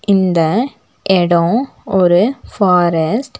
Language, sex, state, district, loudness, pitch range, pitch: Tamil, female, Tamil Nadu, Nilgiris, -14 LUFS, 175-225 Hz, 190 Hz